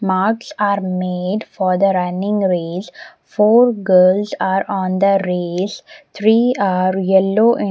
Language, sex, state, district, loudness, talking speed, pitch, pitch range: English, female, Maharashtra, Mumbai Suburban, -16 LUFS, 140 wpm, 195 Hz, 185-210 Hz